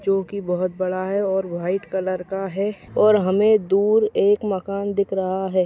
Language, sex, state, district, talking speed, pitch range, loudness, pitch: Hindi, female, Uttar Pradesh, Etah, 190 wpm, 185-200 Hz, -21 LUFS, 195 Hz